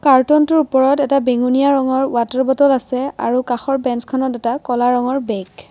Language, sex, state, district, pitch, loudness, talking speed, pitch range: Assamese, female, Assam, Kamrup Metropolitan, 260 Hz, -16 LUFS, 170 wpm, 245-275 Hz